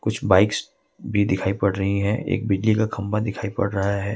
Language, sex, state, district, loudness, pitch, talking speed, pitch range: Hindi, male, Jharkhand, Ranchi, -22 LUFS, 100 Hz, 215 wpm, 100-110 Hz